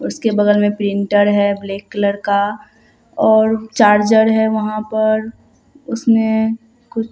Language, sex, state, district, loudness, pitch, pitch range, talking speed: Hindi, female, Bihar, Katihar, -15 LUFS, 220 Hz, 205-225 Hz, 125 wpm